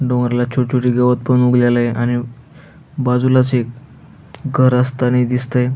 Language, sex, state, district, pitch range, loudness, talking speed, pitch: Marathi, male, Maharashtra, Aurangabad, 125-130 Hz, -16 LUFS, 125 wpm, 125 Hz